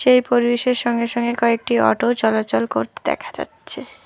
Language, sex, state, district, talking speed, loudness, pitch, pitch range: Bengali, female, West Bengal, Alipurduar, 150 wpm, -19 LUFS, 235 Hz, 225-245 Hz